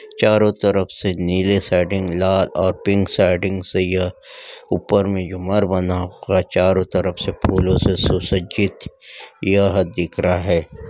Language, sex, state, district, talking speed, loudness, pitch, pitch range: Hindi, male, West Bengal, Kolkata, 130 wpm, -18 LUFS, 95 Hz, 90-100 Hz